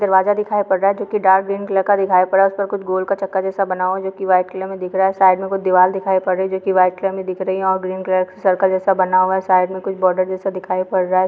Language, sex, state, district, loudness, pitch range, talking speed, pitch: Hindi, female, Chhattisgarh, Sukma, -17 LUFS, 185-195 Hz, 345 wpm, 190 Hz